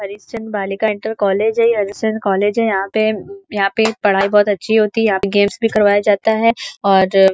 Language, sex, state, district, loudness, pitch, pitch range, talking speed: Hindi, female, Uttar Pradesh, Varanasi, -16 LUFS, 210 Hz, 200-220 Hz, 215 wpm